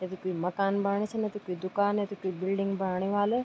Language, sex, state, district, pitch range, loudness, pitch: Garhwali, female, Uttarakhand, Tehri Garhwal, 185-205 Hz, -30 LUFS, 195 Hz